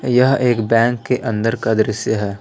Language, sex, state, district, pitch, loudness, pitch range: Hindi, male, Jharkhand, Palamu, 115 Hz, -17 LUFS, 110-125 Hz